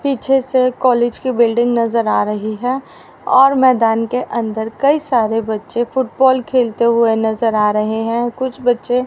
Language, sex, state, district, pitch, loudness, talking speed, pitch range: Hindi, female, Haryana, Rohtak, 240 Hz, -15 LUFS, 165 wpm, 225-255 Hz